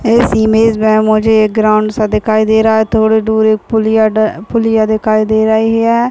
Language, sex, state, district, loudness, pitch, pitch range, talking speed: Hindi, female, Chhattisgarh, Raigarh, -11 LUFS, 220 Hz, 215-220 Hz, 195 wpm